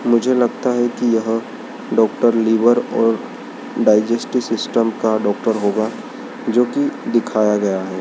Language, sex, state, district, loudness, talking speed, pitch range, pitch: Hindi, male, Madhya Pradesh, Dhar, -17 LUFS, 135 wpm, 110-120 Hz, 115 Hz